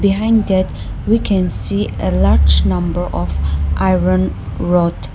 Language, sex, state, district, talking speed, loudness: English, female, Nagaland, Dimapur, 130 wpm, -16 LUFS